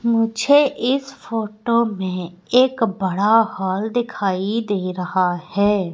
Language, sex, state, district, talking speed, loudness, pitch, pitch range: Hindi, female, Madhya Pradesh, Katni, 110 wpm, -19 LUFS, 215 Hz, 190-235 Hz